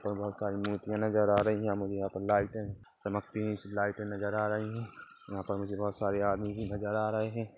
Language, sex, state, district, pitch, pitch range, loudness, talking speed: Hindi, male, Chhattisgarh, Kabirdham, 105 Hz, 100-105 Hz, -33 LUFS, 235 wpm